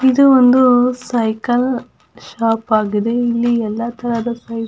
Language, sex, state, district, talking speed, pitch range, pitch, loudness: Kannada, female, Karnataka, Belgaum, 130 wpm, 230-250 Hz, 240 Hz, -15 LUFS